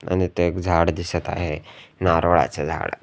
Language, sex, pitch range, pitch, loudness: Marathi, male, 85-90 Hz, 85 Hz, -22 LUFS